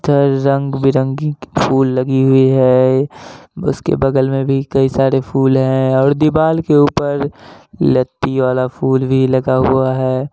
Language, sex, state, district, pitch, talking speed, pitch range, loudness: Hindi, male, Bihar, Gaya, 135 Hz, 150 wpm, 130-140 Hz, -14 LUFS